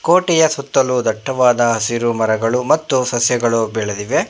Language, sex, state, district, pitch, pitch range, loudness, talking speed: Kannada, male, Karnataka, Bangalore, 120 Hz, 115-135 Hz, -16 LUFS, 110 wpm